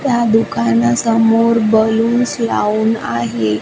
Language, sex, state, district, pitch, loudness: Marathi, female, Maharashtra, Washim, 225 Hz, -14 LUFS